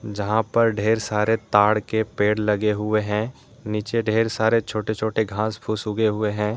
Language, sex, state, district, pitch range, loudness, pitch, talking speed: Hindi, male, Jharkhand, Deoghar, 105-110 Hz, -22 LUFS, 110 Hz, 185 wpm